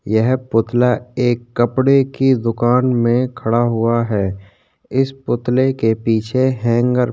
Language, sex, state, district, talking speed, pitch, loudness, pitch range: Hindi, male, Chhattisgarh, Korba, 135 wpm, 120 Hz, -17 LUFS, 115-130 Hz